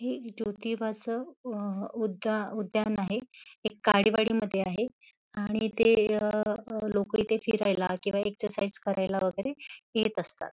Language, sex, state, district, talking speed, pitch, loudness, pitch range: Marathi, female, Maharashtra, Pune, 115 wpm, 215 Hz, -30 LUFS, 205-225 Hz